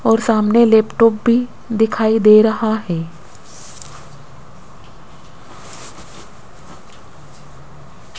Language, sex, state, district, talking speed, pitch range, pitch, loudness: Hindi, female, Rajasthan, Jaipur, 60 wpm, 175-225 Hz, 220 Hz, -14 LUFS